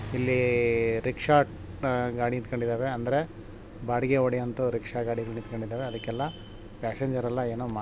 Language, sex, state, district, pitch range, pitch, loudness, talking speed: Kannada, male, Karnataka, Shimoga, 115-125 Hz, 120 Hz, -28 LUFS, 125 wpm